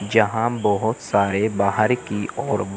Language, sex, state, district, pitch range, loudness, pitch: Hindi, male, Chandigarh, Chandigarh, 100-110 Hz, -21 LUFS, 105 Hz